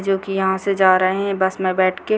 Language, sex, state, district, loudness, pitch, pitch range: Hindi, female, Bihar, Purnia, -18 LUFS, 190 Hz, 185-195 Hz